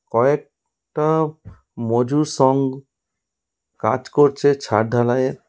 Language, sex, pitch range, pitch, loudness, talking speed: Bengali, male, 120-145 Hz, 130 Hz, -19 LUFS, 85 wpm